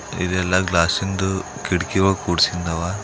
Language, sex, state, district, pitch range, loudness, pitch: Kannada, male, Karnataka, Bidar, 90-95 Hz, -20 LUFS, 90 Hz